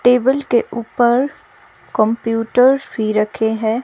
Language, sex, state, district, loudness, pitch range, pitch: Hindi, female, Himachal Pradesh, Shimla, -17 LUFS, 220-255 Hz, 235 Hz